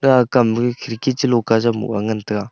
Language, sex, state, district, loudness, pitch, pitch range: Wancho, male, Arunachal Pradesh, Longding, -18 LUFS, 115 Hz, 110-125 Hz